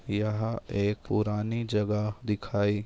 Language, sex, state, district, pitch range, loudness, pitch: Hindi, male, Maharashtra, Nagpur, 105-110 Hz, -30 LUFS, 105 Hz